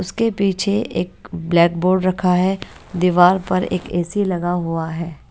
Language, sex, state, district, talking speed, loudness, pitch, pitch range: Hindi, female, Odisha, Nuapada, 160 wpm, -19 LUFS, 180 Hz, 175-190 Hz